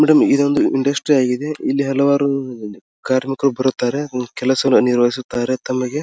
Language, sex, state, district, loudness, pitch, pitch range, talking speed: Kannada, male, Karnataka, Dharwad, -17 LUFS, 130 Hz, 125-140 Hz, 120 wpm